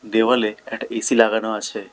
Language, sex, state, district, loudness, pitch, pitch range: Bengali, male, West Bengal, Alipurduar, -20 LUFS, 110 Hz, 110-115 Hz